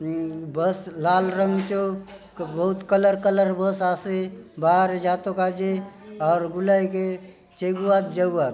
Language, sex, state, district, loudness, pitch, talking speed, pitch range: Halbi, male, Chhattisgarh, Bastar, -23 LUFS, 185 Hz, 125 wpm, 180-195 Hz